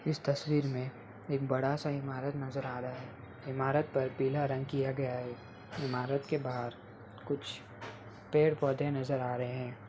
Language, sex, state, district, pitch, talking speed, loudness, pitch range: Hindi, male, Uttar Pradesh, Ghazipur, 130 Hz, 165 wpm, -34 LUFS, 125-140 Hz